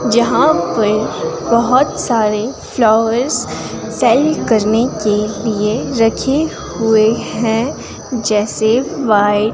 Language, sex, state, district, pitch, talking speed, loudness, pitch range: Hindi, female, Himachal Pradesh, Shimla, 225 Hz, 95 wpm, -15 LUFS, 215-240 Hz